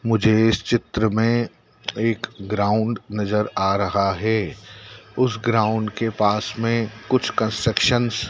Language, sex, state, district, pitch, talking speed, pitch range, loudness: Hindi, male, Madhya Pradesh, Dhar, 110 Hz, 135 wpm, 105-115 Hz, -21 LUFS